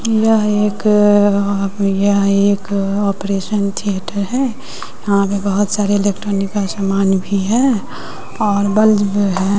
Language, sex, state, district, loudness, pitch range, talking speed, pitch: Hindi, female, Bihar, West Champaran, -15 LUFS, 200-210 Hz, 120 wpm, 200 Hz